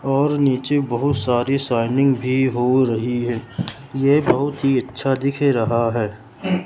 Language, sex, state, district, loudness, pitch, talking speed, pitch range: Hindi, male, Madhya Pradesh, Katni, -19 LUFS, 130 Hz, 145 wpm, 120-140 Hz